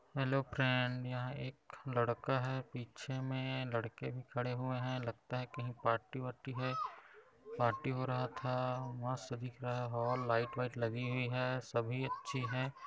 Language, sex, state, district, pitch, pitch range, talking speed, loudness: Hindi, male, Chhattisgarh, Kabirdham, 125 Hz, 120-130 Hz, 160 wpm, -39 LUFS